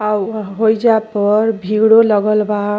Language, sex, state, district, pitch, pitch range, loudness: Bhojpuri, female, Uttar Pradesh, Ghazipur, 215 Hz, 210-220 Hz, -14 LUFS